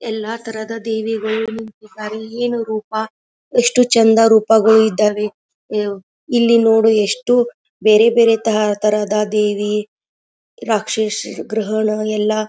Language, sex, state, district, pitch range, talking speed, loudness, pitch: Kannada, female, Karnataka, Gulbarga, 215-225 Hz, 110 wpm, -16 LUFS, 220 Hz